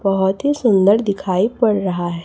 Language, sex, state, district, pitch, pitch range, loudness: Hindi, female, Chhattisgarh, Raipur, 195 Hz, 190-220 Hz, -17 LUFS